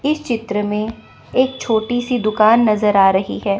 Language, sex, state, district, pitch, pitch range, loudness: Hindi, female, Chandigarh, Chandigarh, 220 Hz, 210-245 Hz, -17 LUFS